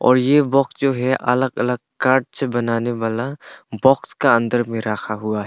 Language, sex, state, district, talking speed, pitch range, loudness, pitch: Hindi, male, Arunachal Pradesh, Longding, 185 wpm, 115-130 Hz, -19 LUFS, 125 Hz